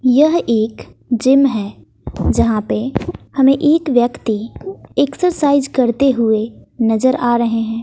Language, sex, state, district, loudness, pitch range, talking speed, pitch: Hindi, female, Bihar, West Champaran, -15 LUFS, 215-275 Hz, 120 wpm, 240 Hz